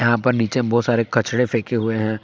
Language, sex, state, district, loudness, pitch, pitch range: Hindi, male, Jharkhand, Palamu, -20 LUFS, 115 Hz, 115-120 Hz